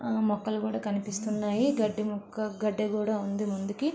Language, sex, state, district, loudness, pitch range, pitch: Telugu, female, Andhra Pradesh, Visakhapatnam, -30 LUFS, 205-215 Hz, 210 Hz